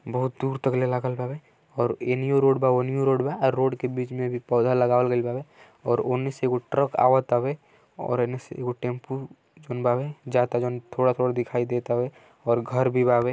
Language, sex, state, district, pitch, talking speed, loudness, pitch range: Bhojpuri, male, Uttar Pradesh, Gorakhpur, 125 Hz, 200 wpm, -25 LUFS, 125-135 Hz